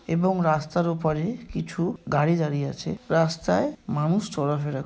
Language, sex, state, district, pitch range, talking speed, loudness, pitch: Bengali, male, West Bengal, Kolkata, 150-180 Hz, 125 wpm, -25 LUFS, 165 Hz